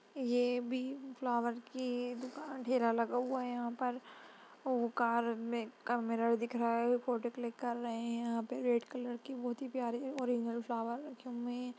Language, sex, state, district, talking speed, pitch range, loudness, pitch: Hindi, female, Uttar Pradesh, Budaun, 185 wpm, 235-255 Hz, -37 LUFS, 245 Hz